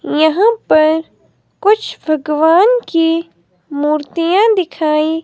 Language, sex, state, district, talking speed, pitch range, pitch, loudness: Hindi, female, Himachal Pradesh, Shimla, 80 wpm, 310-390 Hz, 325 Hz, -14 LUFS